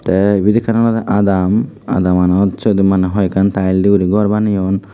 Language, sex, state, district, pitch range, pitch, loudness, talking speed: Chakma, male, Tripura, Dhalai, 95-105 Hz, 100 Hz, -14 LUFS, 160 wpm